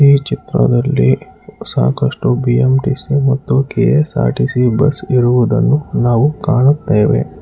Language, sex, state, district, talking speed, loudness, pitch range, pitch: Kannada, male, Karnataka, Bangalore, 80 wpm, -14 LUFS, 120-145 Hz, 135 Hz